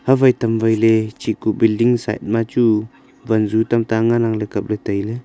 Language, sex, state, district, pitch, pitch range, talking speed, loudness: Wancho, male, Arunachal Pradesh, Longding, 115 Hz, 110-115 Hz, 160 wpm, -18 LUFS